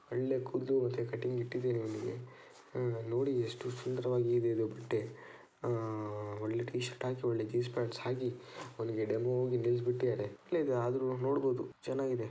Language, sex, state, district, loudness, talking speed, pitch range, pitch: Kannada, male, Karnataka, Dakshina Kannada, -36 LUFS, 135 wpm, 115-125 Hz, 120 Hz